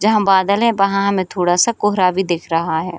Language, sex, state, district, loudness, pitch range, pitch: Hindi, female, Bihar, Sitamarhi, -16 LUFS, 175-205 Hz, 190 Hz